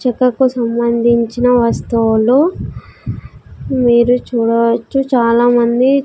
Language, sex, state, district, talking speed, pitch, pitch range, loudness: Telugu, female, Andhra Pradesh, Sri Satya Sai, 70 wpm, 240 Hz, 235-255 Hz, -13 LUFS